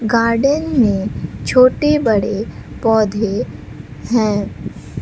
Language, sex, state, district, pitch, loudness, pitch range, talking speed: Hindi, female, Bihar, Katihar, 220 Hz, -16 LUFS, 200-255 Hz, 70 wpm